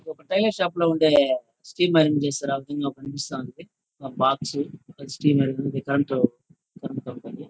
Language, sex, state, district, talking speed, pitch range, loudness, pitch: Telugu, male, Andhra Pradesh, Chittoor, 105 wpm, 140-170 Hz, -24 LUFS, 145 Hz